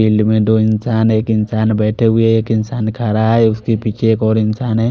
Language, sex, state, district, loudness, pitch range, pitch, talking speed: Hindi, male, Odisha, Khordha, -14 LUFS, 110-115 Hz, 110 Hz, 230 wpm